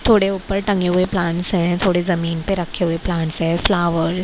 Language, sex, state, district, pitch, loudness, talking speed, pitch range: Hindi, female, Maharashtra, Mumbai Suburban, 175 Hz, -19 LUFS, 210 wpm, 170-195 Hz